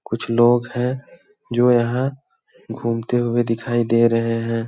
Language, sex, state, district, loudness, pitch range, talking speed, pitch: Hindi, male, Chhattisgarh, Balrampur, -19 LUFS, 115-130 Hz, 140 wpm, 120 Hz